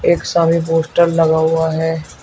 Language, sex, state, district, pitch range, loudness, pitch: Hindi, male, Uttar Pradesh, Shamli, 160-170 Hz, -15 LUFS, 165 Hz